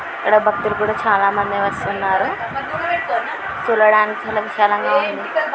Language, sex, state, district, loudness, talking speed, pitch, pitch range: Telugu, female, Andhra Pradesh, Srikakulam, -18 LUFS, 110 wpm, 210 Hz, 200-215 Hz